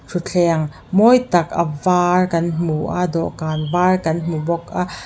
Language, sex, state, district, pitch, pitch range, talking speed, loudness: Mizo, female, Mizoram, Aizawl, 170 Hz, 165-180 Hz, 165 wpm, -18 LUFS